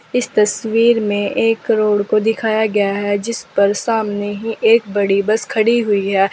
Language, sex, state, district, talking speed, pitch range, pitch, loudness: Hindi, female, Uttar Pradesh, Saharanpur, 180 wpm, 205-225 Hz, 215 Hz, -16 LUFS